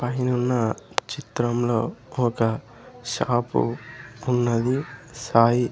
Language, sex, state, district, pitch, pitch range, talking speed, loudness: Telugu, male, Andhra Pradesh, Sri Satya Sai, 120 Hz, 115-125 Hz, 65 wpm, -24 LUFS